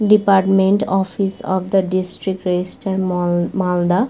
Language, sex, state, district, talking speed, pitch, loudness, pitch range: Bengali, female, West Bengal, Malda, 130 wpm, 190 Hz, -18 LUFS, 180-195 Hz